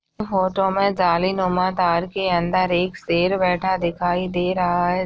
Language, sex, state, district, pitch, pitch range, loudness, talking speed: Hindi, female, Uttar Pradesh, Deoria, 185 Hz, 175-190 Hz, -20 LUFS, 165 wpm